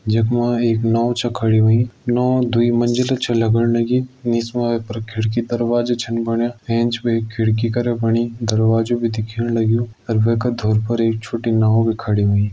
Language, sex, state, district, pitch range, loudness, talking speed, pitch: Garhwali, male, Uttarakhand, Uttarkashi, 115-120 Hz, -18 LUFS, 190 wpm, 115 Hz